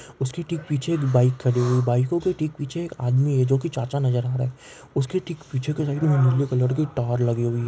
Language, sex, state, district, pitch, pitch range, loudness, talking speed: Hindi, male, Maharashtra, Chandrapur, 135 Hz, 125-155 Hz, -23 LUFS, 240 wpm